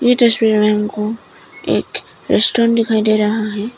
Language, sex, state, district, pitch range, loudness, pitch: Hindi, female, Arunachal Pradesh, Papum Pare, 210-230 Hz, -15 LUFS, 220 Hz